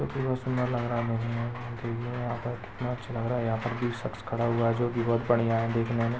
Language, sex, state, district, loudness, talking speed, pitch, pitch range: Hindi, male, Chhattisgarh, Sarguja, -30 LUFS, 240 wpm, 120 Hz, 115-120 Hz